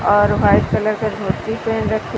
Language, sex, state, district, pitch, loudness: Hindi, female, Odisha, Sambalpur, 215 Hz, -17 LUFS